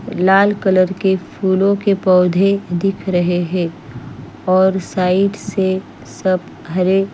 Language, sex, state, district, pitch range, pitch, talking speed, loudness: Hindi, female, Chandigarh, Chandigarh, 180-195 Hz, 185 Hz, 125 wpm, -16 LUFS